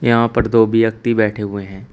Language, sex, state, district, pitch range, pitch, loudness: Hindi, male, Uttar Pradesh, Shamli, 105-115 Hz, 115 Hz, -16 LUFS